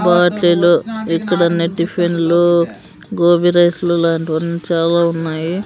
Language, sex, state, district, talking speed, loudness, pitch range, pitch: Telugu, female, Andhra Pradesh, Sri Satya Sai, 105 wpm, -15 LUFS, 170-175 Hz, 170 Hz